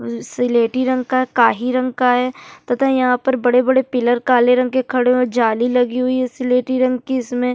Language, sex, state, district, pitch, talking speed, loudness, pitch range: Hindi, female, Uttarakhand, Tehri Garhwal, 250 Hz, 220 wpm, -17 LUFS, 245-255 Hz